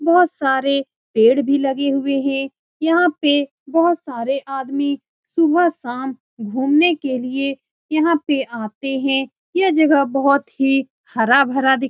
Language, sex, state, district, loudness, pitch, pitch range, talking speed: Hindi, female, Bihar, Saran, -18 LUFS, 275 Hz, 265-300 Hz, 135 wpm